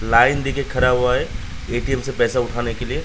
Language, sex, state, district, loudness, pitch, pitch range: Hindi, male, Uttar Pradesh, Gorakhpur, -20 LUFS, 125 Hz, 120-135 Hz